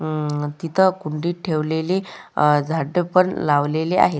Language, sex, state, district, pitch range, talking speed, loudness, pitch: Marathi, female, Maharashtra, Solapur, 150-180 Hz, 130 wpm, -20 LUFS, 160 Hz